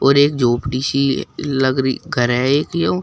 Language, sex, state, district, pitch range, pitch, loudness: Hindi, male, Uttar Pradesh, Shamli, 125-140 Hz, 130 Hz, -17 LUFS